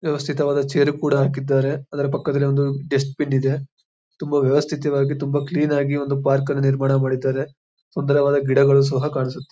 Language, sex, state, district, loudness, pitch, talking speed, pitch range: Kannada, male, Karnataka, Mysore, -20 LUFS, 140 Hz, 155 wpm, 135-145 Hz